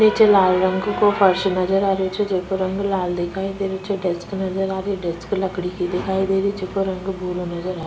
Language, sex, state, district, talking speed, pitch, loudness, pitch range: Rajasthani, female, Rajasthan, Nagaur, 245 wpm, 190 Hz, -21 LUFS, 185-195 Hz